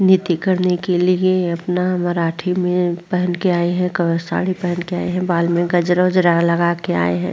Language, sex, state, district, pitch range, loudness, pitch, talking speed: Hindi, female, Uttar Pradesh, Muzaffarnagar, 170-180 Hz, -18 LUFS, 180 Hz, 205 wpm